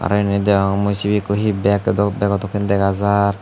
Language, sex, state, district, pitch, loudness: Chakma, male, Tripura, Unakoti, 100 Hz, -18 LUFS